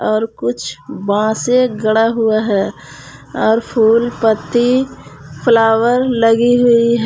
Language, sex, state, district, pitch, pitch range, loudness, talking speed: Hindi, female, Jharkhand, Palamu, 225 Hz, 210-235 Hz, -14 LUFS, 110 wpm